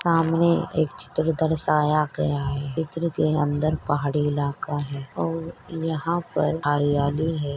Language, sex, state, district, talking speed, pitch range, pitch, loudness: Hindi, female, Maharashtra, Chandrapur, 135 wpm, 145-160 Hz, 155 Hz, -24 LUFS